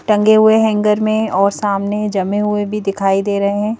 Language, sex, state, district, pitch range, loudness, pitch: Hindi, female, Madhya Pradesh, Bhopal, 200-215 Hz, -15 LUFS, 210 Hz